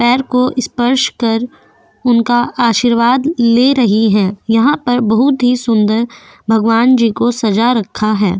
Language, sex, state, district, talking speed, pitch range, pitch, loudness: Hindi, female, Goa, North and South Goa, 145 wpm, 225-250 Hz, 235 Hz, -13 LUFS